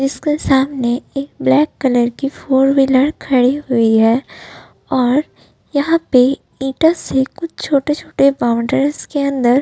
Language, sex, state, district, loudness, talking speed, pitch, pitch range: Hindi, female, Uttar Pradesh, Budaun, -15 LUFS, 135 wpm, 270 Hz, 255-285 Hz